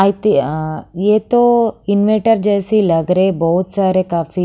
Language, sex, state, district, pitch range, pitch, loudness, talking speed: Hindi, female, Haryana, Charkhi Dadri, 170-215 Hz, 195 Hz, -15 LUFS, 150 wpm